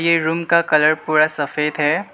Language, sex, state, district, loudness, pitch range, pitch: Hindi, male, Arunachal Pradesh, Lower Dibang Valley, -17 LUFS, 150-165 Hz, 155 Hz